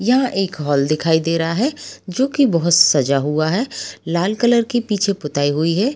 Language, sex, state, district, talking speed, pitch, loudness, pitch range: Hindi, female, Bihar, Sitamarhi, 210 wpm, 175 Hz, -17 LUFS, 155-240 Hz